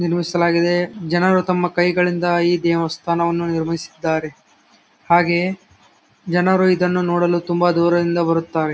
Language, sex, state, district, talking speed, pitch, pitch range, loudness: Kannada, male, Karnataka, Gulbarga, 105 wpm, 175 Hz, 170-175 Hz, -18 LUFS